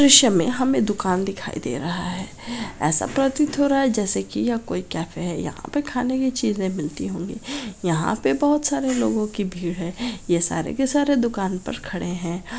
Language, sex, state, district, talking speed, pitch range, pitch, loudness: Hindi, female, Bihar, Araria, 205 wpm, 180-265 Hz, 215 Hz, -23 LUFS